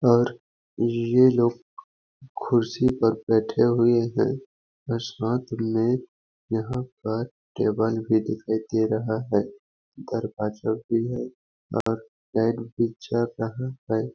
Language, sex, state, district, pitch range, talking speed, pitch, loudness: Hindi, male, Chhattisgarh, Balrampur, 110-125 Hz, 115 wpm, 115 Hz, -25 LUFS